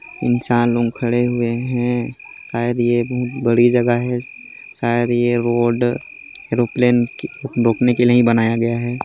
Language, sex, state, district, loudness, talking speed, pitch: Hindi, male, Chhattisgarh, Jashpur, -18 LUFS, 145 wpm, 120 Hz